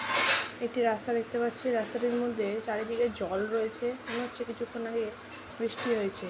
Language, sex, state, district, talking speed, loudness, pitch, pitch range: Bengali, female, West Bengal, Jhargram, 145 wpm, -31 LUFS, 230 Hz, 220-240 Hz